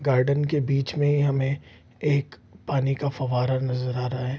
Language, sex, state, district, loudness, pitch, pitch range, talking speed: Hindi, male, Bihar, Vaishali, -25 LUFS, 135 Hz, 125-140 Hz, 190 wpm